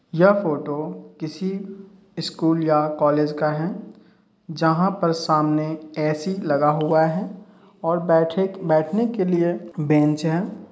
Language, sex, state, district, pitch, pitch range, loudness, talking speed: Hindi, male, Uttar Pradesh, Hamirpur, 165 Hz, 155-195 Hz, -21 LUFS, 125 wpm